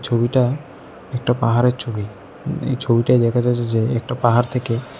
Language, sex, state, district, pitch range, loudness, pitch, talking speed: Bengali, male, Tripura, West Tripura, 115-125 Hz, -19 LUFS, 120 Hz, 145 wpm